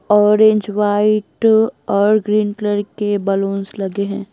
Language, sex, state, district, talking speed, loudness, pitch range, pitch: Hindi, female, Bihar, Patna, 125 wpm, -16 LUFS, 200-215 Hz, 210 Hz